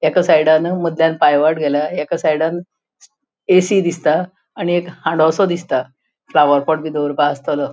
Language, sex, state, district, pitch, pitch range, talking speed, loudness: Konkani, female, Goa, North and South Goa, 160 Hz, 155-180 Hz, 130 wpm, -16 LUFS